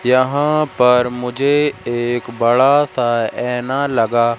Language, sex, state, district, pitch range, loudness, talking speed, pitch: Hindi, male, Madhya Pradesh, Katni, 120-140 Hz, -16 LUFS, 110 wpm, 125 Hz